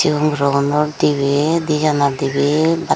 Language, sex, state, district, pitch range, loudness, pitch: Chakma, female, Tripura, Dhalai, 140-155 Hz, -16 LUFS, 150 Hz